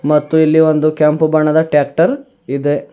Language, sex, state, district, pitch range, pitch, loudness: Kannada, male, Karnataka, Bidar, 145-160 Hz, 155 Hz, -13 LUFS